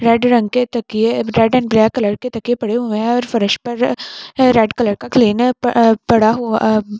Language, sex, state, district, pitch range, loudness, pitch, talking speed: Hindi, female, Delhi, New Delhi, 220-245 Hz, -15 LUFS, 230 Hz, 195 wpm